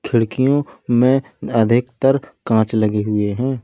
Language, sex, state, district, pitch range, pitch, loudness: Hindi, male, Uttar Pradesh, Lalitpur, 110-130 Hz, 120 Hz, -18 LUFS